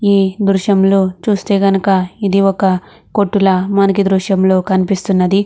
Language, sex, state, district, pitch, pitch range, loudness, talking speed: Telugu, female, Andhra Pradesh, Krishna, 195 Hz, 190-200 Hz, -13 LUFS, 130 wpm